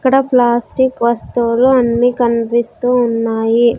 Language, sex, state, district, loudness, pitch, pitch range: Telugu, female, Andhra Pradesh, Sri Satya Sai, -14 LUFS, 240 Hz, 235-250 Hz